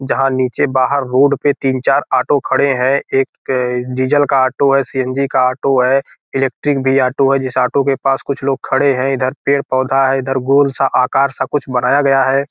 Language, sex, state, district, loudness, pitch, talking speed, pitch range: Hindi, male, Bihar, Gopalganj, -15 LUFS, 135 Hz, 235 wpm, 130-140 Hz